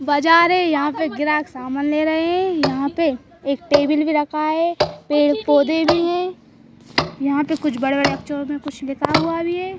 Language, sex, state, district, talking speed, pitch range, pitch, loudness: Hindi, female, Madhya Pradesh, Bhopal, 190 wpm, 285-330 Hz, 300 Hz, -19 LUFS